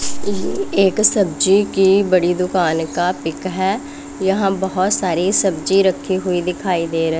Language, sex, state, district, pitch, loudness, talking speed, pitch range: Hindi, female, Punjab, Pathankot, 190 Hz, -17 LUFS, 150 wpm, 175-195 Hz